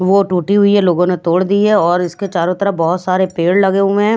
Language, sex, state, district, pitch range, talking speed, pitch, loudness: Hindi, female, Bihar, West Champaran, 175-200 Hz, 260 wpm, 185 Hz, -14 LUFS